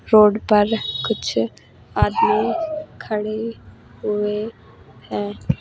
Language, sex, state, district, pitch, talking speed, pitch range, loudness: Hindi, female, Uttar Pradesh, Jalaun, 210 Hz, 75 wpm, 205-225 Hz, -21 LUFS